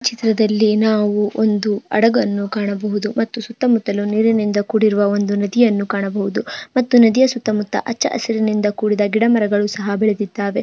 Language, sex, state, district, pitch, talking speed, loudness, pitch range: Kannada, female, Karnataka, Bijapur, 215 Hz, 135 wpm, -17 LUFS, 205-225 Hz